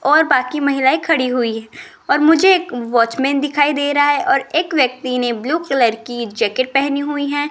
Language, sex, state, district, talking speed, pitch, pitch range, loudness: Hindi, female, Rajasthan, Jaipur, 200 wpm, 285 Hz, 250-295 Hz, -16 LUFS